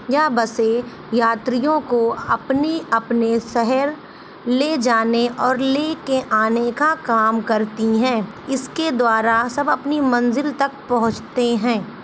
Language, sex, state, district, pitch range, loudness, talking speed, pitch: Hindi, female, Uttar Pradesh, Ghazipur, 230-275 Hz, -19 LUFS, 120 wpm, 240 Hz